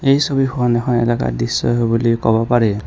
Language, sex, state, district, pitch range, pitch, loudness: Assamese, male, Assam, Kamrup Metropolitan, 115-125 Hz, 120 Hz, -16 LUFS